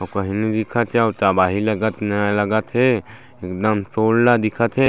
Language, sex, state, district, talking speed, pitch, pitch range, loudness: Chhattisgarhi, male, Chhattisgarh, Sarguja, 195 wpm, 110 Hz, 105-115 Hz, -19 LUFS